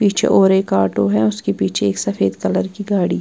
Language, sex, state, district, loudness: Hindi, female, Bihar, Patna, -17 LUFS